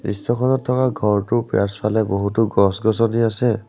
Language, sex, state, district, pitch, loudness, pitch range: Assamese, male, Assam, Sonitpur, 110 Hz, -19 LUFS, 105-120 Hz